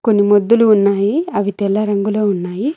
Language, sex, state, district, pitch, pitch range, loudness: Telugu, female, Telangana, Mahabubabad, 205 Hz, 200-215 Hz, -15 LUFS